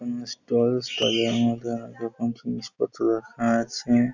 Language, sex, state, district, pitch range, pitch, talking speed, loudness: Bengali, male, West Bengal, Jhargram, 115-120 Hz, 115 Hz, 130 wpm, -25 LUFS